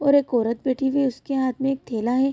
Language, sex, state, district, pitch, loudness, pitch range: Hindi, female, Bihar, Vaishali, 265 Hz, -23 LUFS, 245-275 Hz